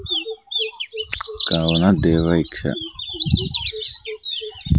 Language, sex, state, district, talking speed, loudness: Telugu, male, Andhra Pradesh, Sri Satya Sai, 40 wpm, -18 LUFS